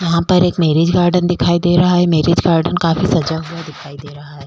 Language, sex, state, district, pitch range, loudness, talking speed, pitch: Hindi, female, Goa, North and South Goa, 160-175 Hz, -14 LUFS, 240 wpm, 170 Hz